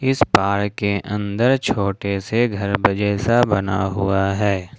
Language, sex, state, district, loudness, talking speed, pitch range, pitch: Hindi, male, Jharkhand, Ranchi, -19 LUFS, 140 wpm, 100-110 Hz, 100 Hz